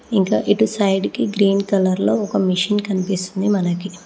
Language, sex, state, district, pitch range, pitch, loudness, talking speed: Telugu, female, Telangana, Mahabubabad, 185-205 Hz, 195 Hz, -18 LUFS, 150 wpm